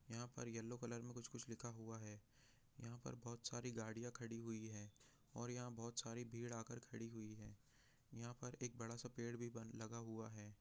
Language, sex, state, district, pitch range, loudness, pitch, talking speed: Hindi, male, Bihar, Jahanabad, 115-120 Hz, -52 LUFS, 120 Hz, 190 wpm